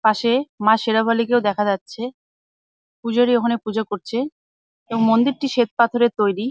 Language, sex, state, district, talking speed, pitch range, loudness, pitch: Bengali, female, West Bengal, Jalpaiguri, 130 wpm, 220-245 Hz, -19 LUFS, 230 Hz